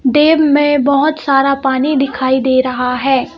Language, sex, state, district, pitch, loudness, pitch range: Hindi, female, Madhya Pradesh, Bhopal, 275 Hz, -13 LUFS, 260-290 Hz